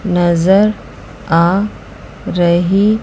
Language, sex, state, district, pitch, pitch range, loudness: Hindi, female, Chandigarh, Chandigarh, 185 Hz, 175-205 Hz, -13 LUFS